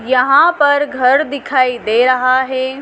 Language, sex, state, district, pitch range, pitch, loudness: Hindi, female, Madhya Pradesh, Dhar, 255-280 Hz, 260 Hz, -13 LUFS